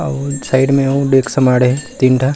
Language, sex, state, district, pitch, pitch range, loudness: Chhattisgarhi, male, Chhattisgarh, Rajnandgaon, 135 Hz, 130-140 Hz, -14 LUFS